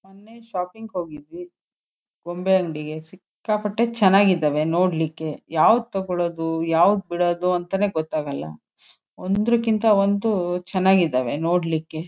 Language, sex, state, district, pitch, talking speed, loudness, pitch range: Kannada, female, Karnataka, Shimoga, 180 Hz, 95 wpm, -22 LUFS, 165-200 Hz